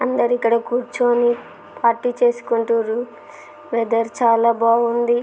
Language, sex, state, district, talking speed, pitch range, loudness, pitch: Telugu, female, Andhra Pradesh, Srikakulam, 90 wpm, 230-240 Hz, -19 LUFS, 235 Hz